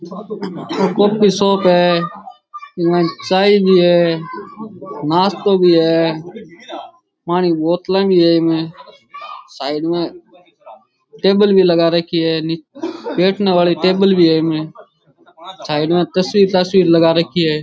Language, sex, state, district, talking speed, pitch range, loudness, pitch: Rajasthani, male, Rajasthan, Churu, 125 wpm, 170-200 Hz, -14 LUFS, 180 Hz